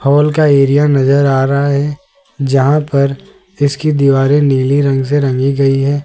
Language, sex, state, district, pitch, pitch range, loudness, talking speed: Hindi, male, Rajasthan, Jaipur, 140 Hz, 135-145 Hz, -12 LUFS, 170 wpm